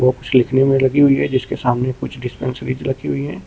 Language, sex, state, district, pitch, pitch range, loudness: Hindi, male, Uttar Pradesh, Lucknow, 130 Hz, 125-135 Hz, -17 LUFS